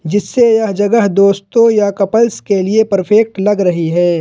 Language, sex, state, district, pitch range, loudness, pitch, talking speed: Hindi, male, Jharkhand, Ranchi, 195-220 Hz, -12 LUFS, 205 Hz, 170 wpm